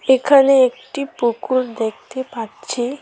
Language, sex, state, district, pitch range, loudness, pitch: Bengali, female, West Bengal, Cooch Behar, 240-270 Hz, -17 LUFS, 255 Hz